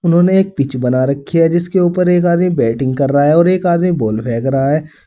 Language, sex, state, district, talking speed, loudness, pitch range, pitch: Hindi, male, Uttar Pradesh, Saharanpur, 250 wpm, -14 LUFS, 135-175 Hz, 165 Hz